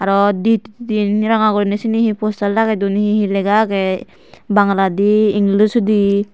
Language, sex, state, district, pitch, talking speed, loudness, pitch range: Chakma, female, Tripura, Dhalai, 210 Hz, 160 wpm, -15 LUFS, 200-215 Hz